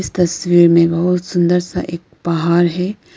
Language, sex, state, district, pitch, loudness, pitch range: Hindi, female, Arunachal Pradesh, Lower Dibang Valley, 175 Hz, -15 LUFS, 170-180 Hz